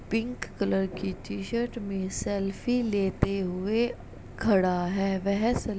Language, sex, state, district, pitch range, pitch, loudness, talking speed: Hindi, female, Uttar Pradesh, Jalaun, 190-225 Hz, 195 Hz, -29 LUFS, 135 wpm